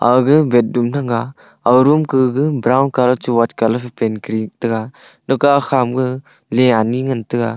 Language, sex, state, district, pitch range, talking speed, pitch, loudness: Wancho, male, Arunachal Pradesh, Longding, 115-135 Hz, 190 wpm, 125 Hz, -16 LUFS